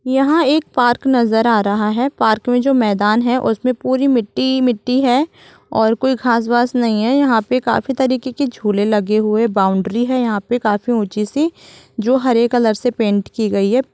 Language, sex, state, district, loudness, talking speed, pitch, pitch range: Hindi, female, Chhattisgarh, Rajnandgaon, -16 LUFS, 195 wpm, 240 Hz, 215-260 Hz